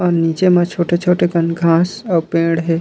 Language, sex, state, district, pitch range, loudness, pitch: Chhattisgarhi, male, Chhattisgarh, Raigarh, 165-175 Hz, -15 LUFS, 170 Hz